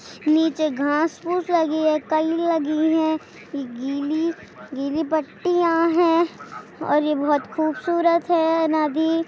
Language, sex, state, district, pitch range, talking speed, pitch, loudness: Hindi, female, Bihar, Lakhisarai, 300-330 Hz, 90 wpm, 315 Hz, -21 LUFS